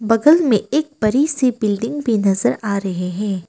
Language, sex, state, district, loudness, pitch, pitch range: Hindi, female, Arunachal Pradesh, Papum Pare, -17 LUFS, 225 Hz, 200-270 Hz